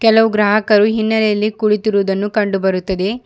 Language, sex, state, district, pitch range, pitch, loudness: Kannada, female, Karnataka, Bidar, 200-220 Hz, 210 Hz, -15 LUFS